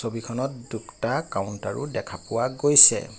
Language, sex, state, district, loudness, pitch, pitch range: Assamese, male, Assam, Kamrup Metropolitan, -21 LUFS, 120 Hz, 115-130 Hz